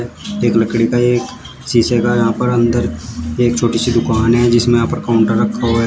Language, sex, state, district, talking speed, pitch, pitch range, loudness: Hindi, male, Uttar Pradesh, Shamli, 215 wpm, 120 Hz, 115-120 Hz, -14 LUFS